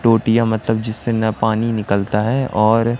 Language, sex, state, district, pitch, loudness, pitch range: Hindi, male, Madhya Pradesh, Katni, 110 Hz, -17 LUFS, 110-115 Hz